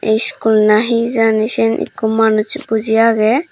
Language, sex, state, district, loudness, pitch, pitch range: Chakma, female, Tripura, Dhalai, -14 LUFS, 220 Hz, 215-230 Hz